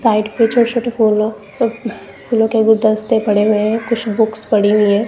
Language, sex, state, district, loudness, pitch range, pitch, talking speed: Hindi, female, Punjab, Kapurthala, -15 LUFS, 215-230 Hz, 220 Hz, 200 wpm